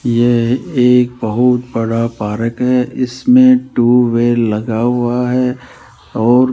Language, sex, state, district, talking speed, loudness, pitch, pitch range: Hindi, male, Rajasthan, Jaipur, 120 wpm, -13 LUFS, 120 Hz, 115-125 Hz